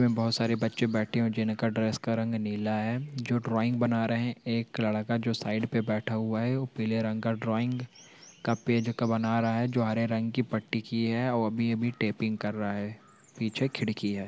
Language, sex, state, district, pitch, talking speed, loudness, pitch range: Hindi, male, Andhra Pradesh, Anantapur, 115 Hz, 225 wpm, -30 LUFS, 110-120 Hz